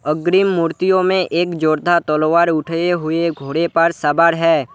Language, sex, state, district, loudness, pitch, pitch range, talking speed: Hindi, male, West Bengal, Alipurduar, -16 LUFS, 165 Hz, 155-175 Hz, 150 wpm